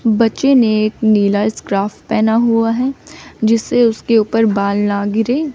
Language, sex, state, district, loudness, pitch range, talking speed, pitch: Hindi, female, Chandigarh, Chandigarh, -15 LUFS, 210-235 Hz, 140 wpm, 225 Hz